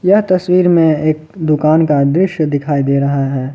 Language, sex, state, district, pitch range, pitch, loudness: Hindi, male, Jharkhand, Ranchi, 140-180 Hz, 155 Hz, -13 LUFS